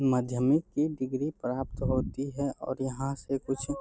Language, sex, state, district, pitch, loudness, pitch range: Hindi, male, Bihar, Bhagalpur, 135 Hz, -31 LUFS, 130-140 Hz